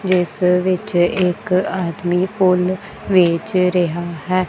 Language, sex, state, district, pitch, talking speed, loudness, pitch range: Punjabi, female, Punjab, Kapurthala, 180 Hz, 105 wpm, -17 LUFS, 175-185 Hz